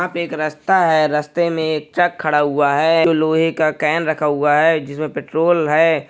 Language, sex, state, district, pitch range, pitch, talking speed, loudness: Hindi, male, Andhra Pradesh, Visakhapatnam, 150-165 Hz, 155 Hz, 195 wpm, -17 LUFS